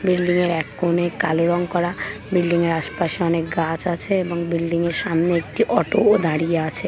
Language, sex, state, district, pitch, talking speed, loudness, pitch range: Bengali, female, West Bengal, Paschim Medinipur, 170 Hz, 200 wpm, -20 LUFS, 165-175 Hz